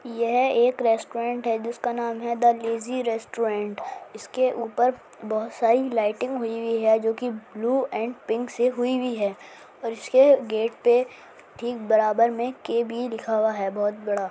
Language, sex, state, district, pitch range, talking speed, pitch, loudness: Hindi, male, Bihar, Bhagalpur, 225-245 Hz, 165 wpm, 235 Hz, -24 LUFS